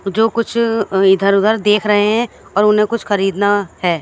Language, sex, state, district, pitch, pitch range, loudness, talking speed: Hindi, female, Haryana, Charkhi Dadri, 205 Hz, 195-225 Hz, -15 LUFS, 180 wpm